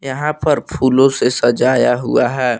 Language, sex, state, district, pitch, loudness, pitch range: Hindi, male, Jharkhand, Palamu, 135 Hz, -15 LUFS, 125-150 Hz